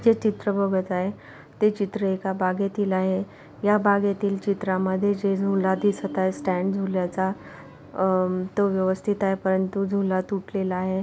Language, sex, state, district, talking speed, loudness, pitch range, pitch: Marathi, female, Maharashtra, Pune, 140 wpm, -24 LUFS, 190-200 Hz, 195 Hz